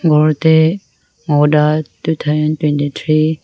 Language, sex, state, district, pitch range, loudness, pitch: Nagamese, female, Nagaland, Kohima, 150-160 Hz, -14 LUFS, 155 Hz